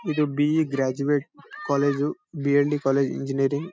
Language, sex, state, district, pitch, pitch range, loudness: Kannada, male, Karnataka, Bijapur, 145 Hz, 140-150 Hz, -24 LUFS